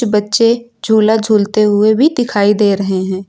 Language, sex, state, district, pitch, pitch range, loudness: Hindi, female, Uttar Pradesh, Lucknow, 215 Hz, 205-230 Hz, -12 LUFS